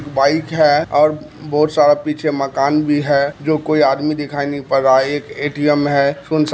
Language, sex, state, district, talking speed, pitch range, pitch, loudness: Maithili, male, Bihar, Kishanganj, 200 wpm, 140-150 Hz, 145 Hz, -16 LUFS